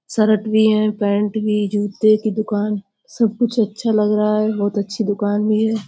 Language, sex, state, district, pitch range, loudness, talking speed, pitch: Hindi, female, Uttar Pradesh, Budaun, 205-215 Hz, -18 LUFS, 195 wpm, 215 Hz